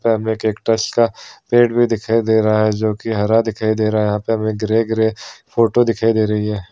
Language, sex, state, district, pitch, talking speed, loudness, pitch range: Hindi, male, Bihar, Kishanganj, 110 Hz, 215 wpm, -17 LUFS, 110-115 Hz